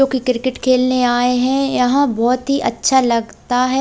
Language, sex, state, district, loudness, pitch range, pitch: Hindi, female, Bihar, Katihar, -16 LUFS, 250-265 Hz, 255 Hz